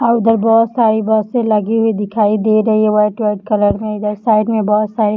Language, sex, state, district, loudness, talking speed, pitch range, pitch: Hindi, female, Maharashtra, Nagpur, -14 LUFS, 230 wpm, 210-225 Hz, 215 Hz